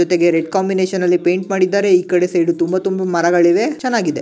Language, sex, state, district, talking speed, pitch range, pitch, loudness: Kannada, male, Karnataka, Gulbarga, 170 wpm, 175-190 Hz, 180 Hz, -15 LUFS